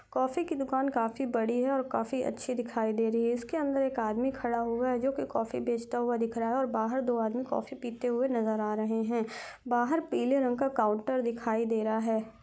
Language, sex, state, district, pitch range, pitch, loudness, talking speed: Hindi, female, Chhattisgarh, Rajnandgaon, 225-260 Hz, 240 Hz, -31 LUFS, 230 wpm